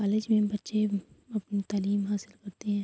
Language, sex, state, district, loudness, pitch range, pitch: Urdu, female, Andhra Pradesh, Anantapur, -30 LUFS, 200-215 Hz, 205 Hz